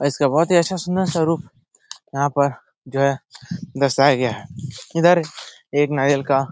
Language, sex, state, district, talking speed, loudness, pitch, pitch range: Hindi, male, Bihar, Jahanabad, 175 wpm, -19 LUFS, 140 Hz, 135-165 Hz